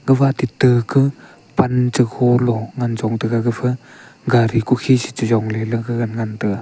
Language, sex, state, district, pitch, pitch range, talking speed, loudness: Wancho, male, Arunachal Pradesh, Longding, 120 Hz, 115-125 Hz, 155 wpm, -18 LUFS